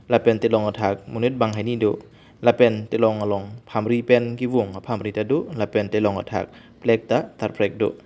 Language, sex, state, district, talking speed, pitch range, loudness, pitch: Karbi, male, Assam, Karbi Anglong, 170 wpm, 105-120 Hz, -22 LUFS, 110 Hz